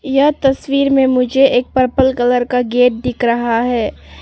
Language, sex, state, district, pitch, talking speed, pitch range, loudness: Hindi, female, Arunachal Pradesh, Papum Pare, 250 Hz, 170 wpm, 245-270 Hz, -14 LUFS